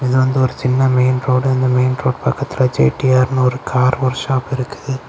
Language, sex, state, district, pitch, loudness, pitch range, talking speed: Tamil, male, Tamil Nadu, Kanyakumari, 130 Hz, -16 LUFS, 125-130 Hz, 200 wpm